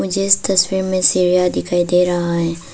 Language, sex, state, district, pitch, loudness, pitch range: Hindi, female, Arunachal Pradesh, Papum Pare, 180 Hz, -15 LUFS, 175-190 Hz